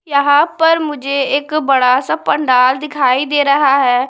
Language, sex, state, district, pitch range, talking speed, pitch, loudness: Hindi, female, Punjab, Pathankot, 265-295 Hz, 160 wpm, 280 Hz, -13 LUFS